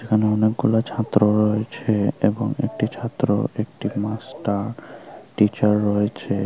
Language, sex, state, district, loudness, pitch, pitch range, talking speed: Bengali, female, Tripura, Unakoti, -21 LUFS, 105 Hz, 105-110 Hz, 100 wpm